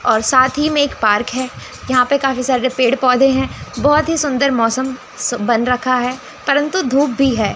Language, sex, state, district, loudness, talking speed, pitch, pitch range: Hindi, female, Chandigarh, Chandigarh, -16 LUFS, 200 wpm, 260 Hz, 250-280 Hz